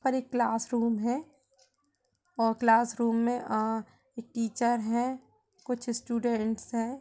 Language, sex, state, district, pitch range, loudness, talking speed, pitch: Hindi, female, Uttar Pradesh, Budaun, 230-260 Hz, -29 LUFS, 120 wpm, 235 Hz